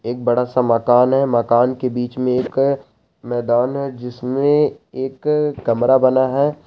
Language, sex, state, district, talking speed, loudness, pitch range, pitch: Hindi, male, Rajasthan, Nagaur, 155 wpm, -18 LUFS, 120-135 Hz, 130 Hz